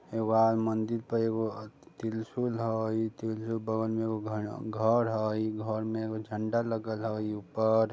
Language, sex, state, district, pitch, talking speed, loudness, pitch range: Bajjika, male, Bihar, Vaishali, 110 Hz, 165 wpm, -31 LUFS, 110-115 Hz